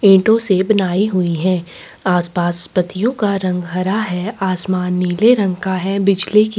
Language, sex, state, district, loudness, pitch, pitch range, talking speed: Hindi, female, Chhattisgarh, Sukma, -16 LUFS, 190 Hz, 180-200 Hz, 165 wpm